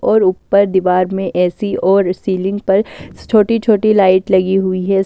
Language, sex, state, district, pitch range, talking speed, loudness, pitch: Hindi, female, Delhi, New Delhi, 185-205 Hz, 155 wpm, -14 LUFS, 190 Hz